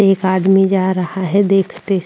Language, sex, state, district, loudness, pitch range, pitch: Hindi, female, Uttar Pradesh, Jyotiba Phule Nagar, -15 LUFS, 185-195 Hz, 195 Hz